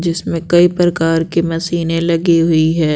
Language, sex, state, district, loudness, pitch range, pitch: Hindi, female, Bihar, Patna, -14 LUFS, 165-170 Hz, 165 Hz